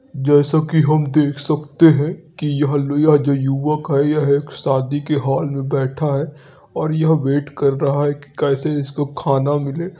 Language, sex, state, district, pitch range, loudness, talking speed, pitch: Hindi, male, Uttar Pradesh, Varanasi, 140-150 Hz, -18 LUFS, 190 wpm, 145 Hz